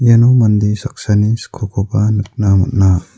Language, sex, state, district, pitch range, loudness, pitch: Garo, male, Meghalaya, South Garo Hills, 100-115 Hz, -14 LUFS, 105 Hz